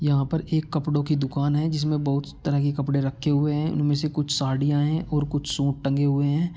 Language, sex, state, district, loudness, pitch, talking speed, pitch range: Hindi, male, Uttar Pradesh, Muzaffarnagar, -24 LUFS, 145 Hz, 235 wpm, 140-150 Hz